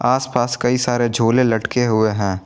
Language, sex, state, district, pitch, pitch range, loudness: Hindi, male, Jharkhand, Garhwa, 120 Hz, 110-125 Hz, -18 LUFS